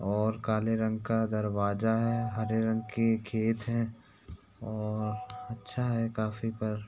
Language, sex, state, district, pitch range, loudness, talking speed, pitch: Hindi, male, Uttar Pradesh, Jyotiba Phule Nagar, 105-115 Hz, -31 LUFS, 150 wpm, 110 Hz